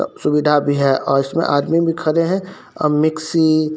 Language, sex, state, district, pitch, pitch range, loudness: Hindi, male, Bihar, Katihar, 155 Hz, 145-165 Hz, -17 LUFS